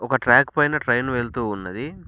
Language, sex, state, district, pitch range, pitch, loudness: Telugu, male, Telangana, Komaram Bheem, 120-140 Hz, 125 Hz, -20 LUFS